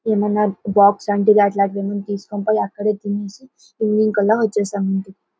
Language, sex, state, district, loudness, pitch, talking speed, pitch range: Telugu, female, Karnataka, Bellary, -18 LUFS, 205 Hz, 110 wpm, 200-215 Hz